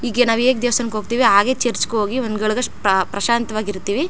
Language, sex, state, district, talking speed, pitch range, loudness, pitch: Kannada, female, Karnataka, Chamarajanagar, 205 wpm, 210-245 Hz, -18 LUFS, 230 Hz